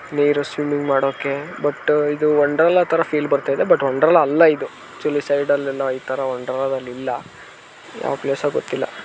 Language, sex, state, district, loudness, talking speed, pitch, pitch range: Kannada, male, Karnataka, Dharwad, -19 LUFS, 155 wpm, 145 Hz, 135-145 Hz